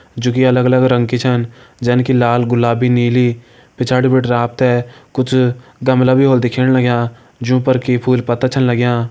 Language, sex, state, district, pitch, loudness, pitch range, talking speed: Hindi, male, Uttarakhand, Uttarkashi, 125 Hz, -14 LUFS, 120-130 Hz, 190 wpm